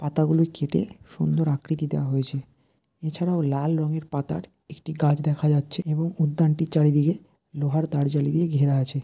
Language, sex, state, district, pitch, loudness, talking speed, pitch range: Bengali, male, West Bengal, Dakshin Dinajpur, 150 Hz, -24 LUFS, 145 wpm, 145-160 Hz